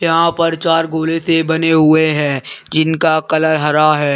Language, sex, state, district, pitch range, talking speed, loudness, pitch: Hindi, male, Uttar Pradesh, Lalitpur, 155-165 Hz, 175 wpm, -14 LUFS, 160 Hz